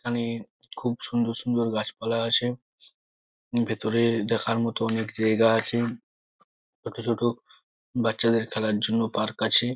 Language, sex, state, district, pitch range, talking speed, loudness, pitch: Bengali, male, West Bengal, Jhargram, 110-120 Hz, 135 wpm, -26 LUFS, 115 Hz